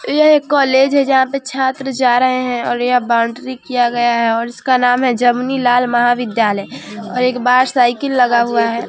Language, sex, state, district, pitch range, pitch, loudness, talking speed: Hindi, female, Bihar, Vaishali, 240-265 Hz, 250 Hz, -14 LUFS, 200 wpm